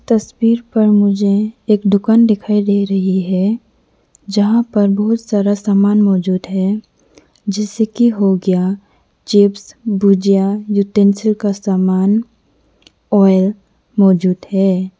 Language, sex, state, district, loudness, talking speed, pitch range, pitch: Hindi, female, Arunachal Pradesh, Lower Dibang Valley, -14 LUFS, 110 wpm, 195-215 Hz, 200 Hz